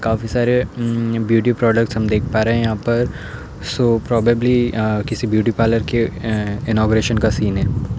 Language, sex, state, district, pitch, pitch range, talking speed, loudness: Hindi, male, Uttar Pradesh, Hamirpur, 115 Hz, 110-120 Hz, 170 wpm, -18 LUFS